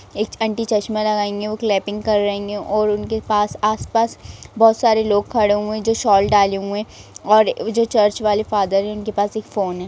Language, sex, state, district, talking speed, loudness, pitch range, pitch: Hindi, female, Chhattisgarh, Raigarh, 220 wpm, -18 LUFS, 205-220 Hz, 210 Hz